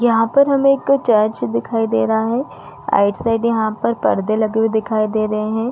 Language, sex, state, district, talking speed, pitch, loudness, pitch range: Hindi, female, Chhattisgarh, Raigarh, 200 wpm, 220 Hz, -17 LUFS, 215-230 Hz